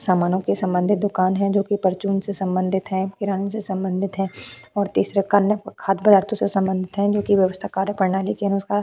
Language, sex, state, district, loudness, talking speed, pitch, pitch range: Hindi, female, Uttarakhand, Tehri Garhwal, -21 LUFS, 195 wpm, 195 Hz, 190-200 Hz